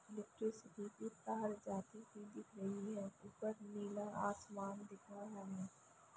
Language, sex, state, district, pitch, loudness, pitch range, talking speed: Hindi, female, Chhattisgarh, Sukma, 205 Hz, -48 LUFS, 200-215 Hz, 135 wpm